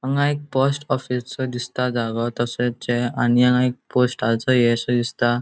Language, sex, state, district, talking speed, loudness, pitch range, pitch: Konkani, male, Goa, North and South Goa, 155 wpm, -21 LUFS, 120-130 Hz, 125 Hz